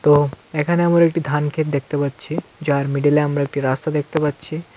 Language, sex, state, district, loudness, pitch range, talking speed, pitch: Bengali, male, Tripura, West Tripura, -19 LUFS, 140-155 Hz, 190 wpm, 150 Hz